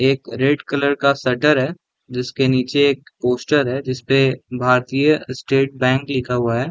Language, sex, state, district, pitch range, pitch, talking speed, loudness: Hindi, male, Chhattisgarh, Raigarh, 125-140 Hz, 130 Hz, 160 wpm, -18 LUFS